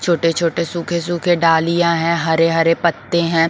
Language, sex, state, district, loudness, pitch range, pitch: Hindi, female, Bihar, Patna, -16 LUFS, 165-170 Hz, 170 Hz